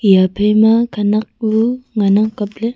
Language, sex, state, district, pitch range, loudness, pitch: Wancho, female, Arunachal Pradesh, Longding, 205-225 Hz, -14 LUFS, 215 Hz